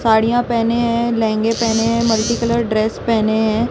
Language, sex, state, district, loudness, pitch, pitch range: Hindi, female, Chhattisgarh, Raipur, -16 LUFS, 230 Hz, 220-235 Hz